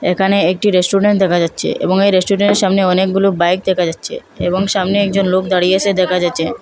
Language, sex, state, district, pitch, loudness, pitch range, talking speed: Bengali, female, Assam, Hailakandi, 190 Hz, -14 LUFS, 180-200 Hz, 190 wpm